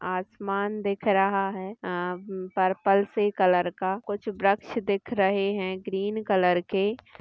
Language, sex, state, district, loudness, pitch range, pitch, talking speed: Hindi, female, Chhattisgarh, Jashpur, -26 LUFS, 185-205 Hz, 195 Hz, 140 wpm